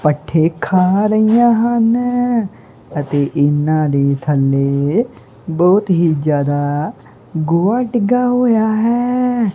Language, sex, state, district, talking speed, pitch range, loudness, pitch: Punjabi, male, Punjab, Kapurthala, 95 wpm, 145-230 Hz, -15 LUFS, 175 Hz